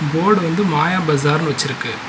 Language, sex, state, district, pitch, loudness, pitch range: Tamil, male, Tamil Nadu, Nilgiris, 155 Hz, -17 LUFS, 150-185 Hz